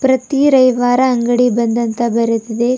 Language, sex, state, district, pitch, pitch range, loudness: Kannada, female, Karnataka, Bidar, 245 Hz, 235-255 Hz, -14 LUFS